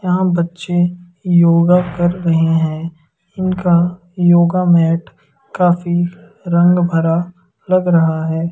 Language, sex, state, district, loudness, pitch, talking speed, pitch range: Hindi, male, Madhya Pradesh, Umaria, -15 LUFS, 175 Hz, 105 wpm, 170-180 Hz